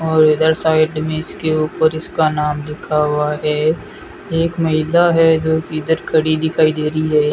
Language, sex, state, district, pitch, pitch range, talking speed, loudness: Hindi, male, Rajasthan, Bikaner, 155 Hz, 155-160 Hz, 170 wpm, -16 LUFS